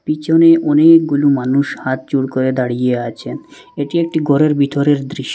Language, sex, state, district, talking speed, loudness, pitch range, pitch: Bengali, male, Assam, Hailakandi, 135 wpm, -14 LUFS, 130-155 Hz, 140 Hz